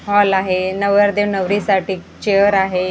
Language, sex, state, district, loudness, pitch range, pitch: Marathi, male, Maharashtra, Gondia, -16 LUFS, 190-205 Hz, 195 Hz